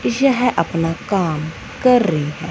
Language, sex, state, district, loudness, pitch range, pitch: Hindi, female, Punjab, Fazilka, -18 LUFS, 160-245 Hz, 165 Hz